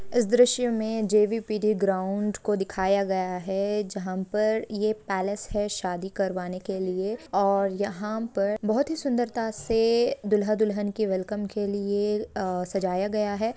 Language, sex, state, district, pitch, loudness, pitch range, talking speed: Hindi, female, Jharkhand, Sahebganj, 205 Hz, -26 LUFS, 195-220 Hz, 155 wpm